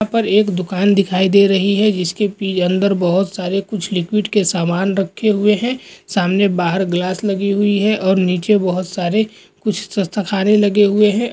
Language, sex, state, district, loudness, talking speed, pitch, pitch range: Hindi, male, Uttarakhand, Tehri Garhwal, -16 LUFS, 175 wpm, 200 Hz, 185-210 Hz